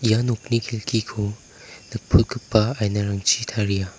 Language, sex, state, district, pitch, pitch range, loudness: Garo, male, Meghalaya, South Garo Hills, 110 Hz, 105-115 Hz, -22 LUFS